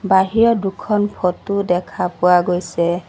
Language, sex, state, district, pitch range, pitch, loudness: Assamese, female, Assam, Sonitpur, 180-205 Hz, 190 Hz, -17 LUFS